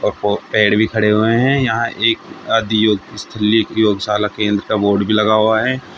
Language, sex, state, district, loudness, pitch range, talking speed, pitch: Hindi, male, Uttar Pradesh, Shamli, -15 LUFS, 105-115 Hz, 190 wpm, 110 Hz